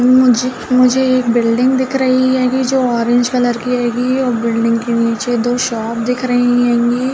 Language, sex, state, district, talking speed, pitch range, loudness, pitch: Hindi, female, Uttar Pradesh, Budaun, 175 wpm, 235-255 Hz, -14 LUFS, 245 Hz